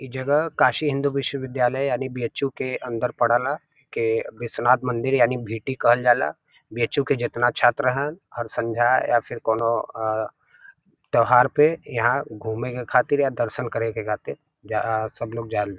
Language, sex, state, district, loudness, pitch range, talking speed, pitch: Bhojpuri, male, Uttar Pradesh, Varanasi, -23 LUFS, 115-140 Hz, 170 wpm, 125 Hz